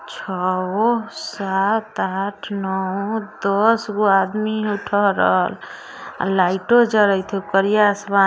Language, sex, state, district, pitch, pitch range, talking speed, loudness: Bajjika, female, Bihar, Vaishali, 205 Hz, 195-220 Hz, 140 wpm, -19 LUFS